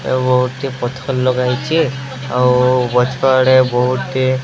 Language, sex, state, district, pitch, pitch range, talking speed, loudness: Odia, male, Odisha, Sambalpur, 130 Hz, 125-130 Hz, 120 wpm, -15 LUFS